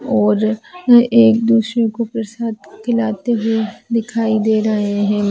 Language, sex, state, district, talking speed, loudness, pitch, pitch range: Hindi, female, Bihar, Madhepura, 135 wpm, -16 LUFS, 225 Hz, 215-230 Hz